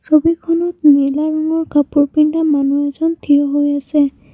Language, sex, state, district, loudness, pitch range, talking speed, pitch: Assamese, female, Assam, Kamrup Metropolitan, -15 LUFS, 285-320 Hz, 140 wpm, 300 Hz